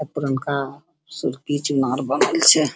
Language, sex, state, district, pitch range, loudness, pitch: Angika, female, Bihar, Bhagalpur, 135-145 Hz, -20 LUFS, 145 Hz